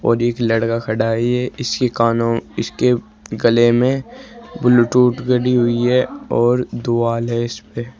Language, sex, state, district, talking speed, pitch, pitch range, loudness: Hindi, male, Uttar Pradesh, Saharanpur, 145 wpm, 120 Hz, 115-125 Hz, -17 LUFS